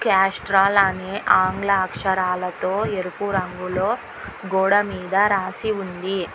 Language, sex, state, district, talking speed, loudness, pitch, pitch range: Telugu, female, Telangana, Hyderabad, 85 wpm, -21 LUFS, 195 Hz, 185-200 Hz